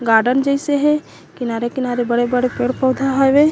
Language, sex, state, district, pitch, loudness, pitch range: Chhattisgarhi, female, Chhattisgarh, Korba, 255 Hz, -17 LUFS, 245-275 Hz